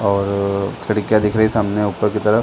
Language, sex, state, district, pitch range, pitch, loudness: Hindi, male, Chhattisgarh, Bastar, 100-105 Hz, 105 Hz, -18 LUFS